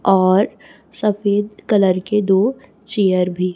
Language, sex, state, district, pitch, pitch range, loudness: Hindi, female, Chhattisgarh, Raipur, 200 Hz, 185-210 Hz, -17 LUFS